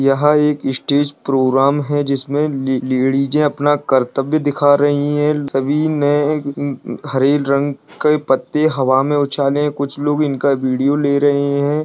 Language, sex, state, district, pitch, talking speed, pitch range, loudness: Hindi, male, Bihar, Kishanganj, 145 Hz, 155 wpm, 135-145 Hz, -16 LUFS